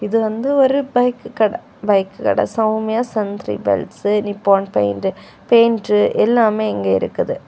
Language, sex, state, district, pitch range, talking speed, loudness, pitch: Tamil, female, Tamil Nadu, Kanyakumari, 195-230 Hz, 110 wpm, -17 LUFS, 215 Hz